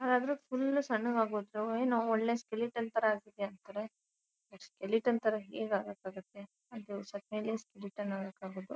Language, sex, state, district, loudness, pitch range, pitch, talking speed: Kannada, female, Karnataka, Shimoga, -36 LUFS, 200-230 Hz, 215 Hz, 105 wpm